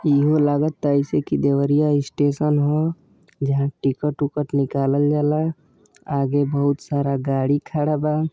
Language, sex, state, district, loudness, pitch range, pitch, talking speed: Bhojpuri, male, Uttar Pradesh, Deoria, -21 LUFS, 140-150 Hz, 145 Hz, 130 wpm